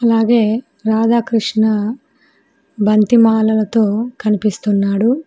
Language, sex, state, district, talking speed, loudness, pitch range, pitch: Telugu, female, Telangana, Mahabubabad, 70 wpm, -15 LUFS, 215-235 Hz, 225 Hz